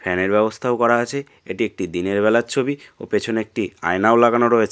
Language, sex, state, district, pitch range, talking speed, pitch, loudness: Bengali, male, West Bengal, North 24 Parganas, 100-120 Hz, 215 wpm, 115 Hz, -19 LUFS